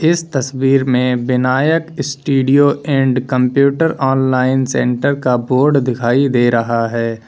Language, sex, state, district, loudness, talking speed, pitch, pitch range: Hindi, male, Uttar Pradesh, Lalitpur, -14 LUFS, 125 wpm, 130 Hz, 125-140 Hz